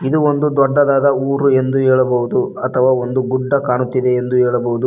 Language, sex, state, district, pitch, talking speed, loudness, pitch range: Kannada, male, Karnataka, Koppal, 130 Hz, 135 wpm, -15 LUFS, 125-140 Hz